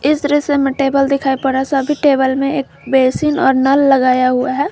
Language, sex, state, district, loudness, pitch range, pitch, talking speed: Hindi, female, Jharkhand, Garhwa, -14 LUFS, 265-285 Hz, 275 Hz, 205 wpm